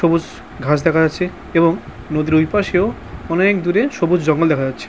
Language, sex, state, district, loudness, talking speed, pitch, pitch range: Bengali, male, West Bengal, Purulia, -17 LUFS, 185 wpm, 165 Hz, 155-180 Hz